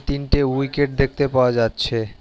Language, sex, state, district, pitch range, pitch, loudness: Bengali, male, West Bengal, Alipurduar, 115-140 Hz, 135 Hz, -20 LUFS